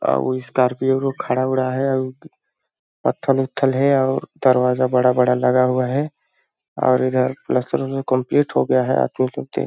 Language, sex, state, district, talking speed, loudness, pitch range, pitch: Hindi, male, Chhattisgarh, Balrampur, 150 wpm, -19 LUFS, 125-135 Hz, 130 Hz